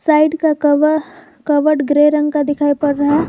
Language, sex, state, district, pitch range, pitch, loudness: Hindi, female, Jharkhand, Garhwa, 290-310 Hz, 300 Hz, -14 LUFS